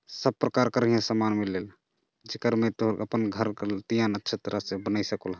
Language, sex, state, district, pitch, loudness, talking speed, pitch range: Chhattisgarhi, male, Chhattisgarh, Jashpur, 110 Hz, -28 LUFS, 200 wpm, 105-115 Hz